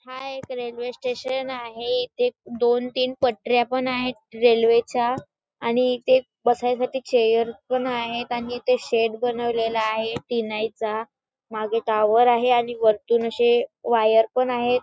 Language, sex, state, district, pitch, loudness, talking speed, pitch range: Marathi, female, Maharashtra, Chandrapur, 240 Hz, -22 LUFS, 140 wpm, 230-255 Hz